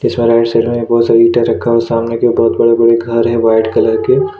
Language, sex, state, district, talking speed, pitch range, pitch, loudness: Hindi, male, Chhattisgarh, Kabirdham, 245 wpm, 115-120 Hz, 115 Hz, -11 LUFS